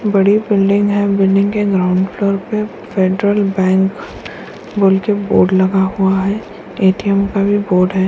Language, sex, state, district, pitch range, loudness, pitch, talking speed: Hindi, female, Bihar, Kishanganj, 190-205 Hz, -14 LUFS, 195 Hz, 155 wpm